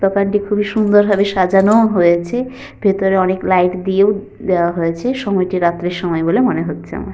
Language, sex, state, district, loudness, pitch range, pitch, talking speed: Bengali, female, West Bengal, Malda, -15 LUFS, 180-205 Hz, 195 Hz, 160 wpm